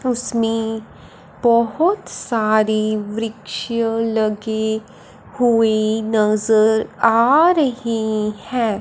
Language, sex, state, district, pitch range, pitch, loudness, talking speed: Hindi, male, Punjab, Fazilka, 215-235 Hz, 225 Hz, -18 LUFS, 70 wpm